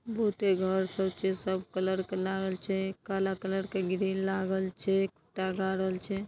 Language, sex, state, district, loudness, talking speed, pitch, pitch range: Maithili, female, Bihar, Darbhanga, -31 LUFS, 145 wpm, 190 Hz, 190-195 Hz